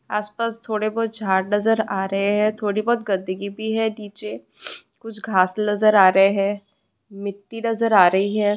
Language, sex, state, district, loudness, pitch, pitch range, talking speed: Hindi, female, West Bengal, Purulia, -20 LUFS, 210 Hz, 195-220 Hz, 180 wpm